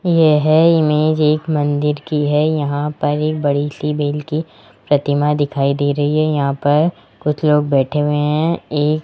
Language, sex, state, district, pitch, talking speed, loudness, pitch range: Hindi, male, Rajasthan, Jaipur, 150 Hz, 180 wpm, -16 LUFS, 145-155 Hz